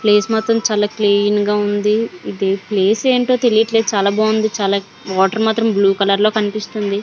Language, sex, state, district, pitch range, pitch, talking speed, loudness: Telugu, female, Andhra Pradesh, Visakhapatnam, 200-220 Hz, 210 Hz, 160 wpm, -16 LUFS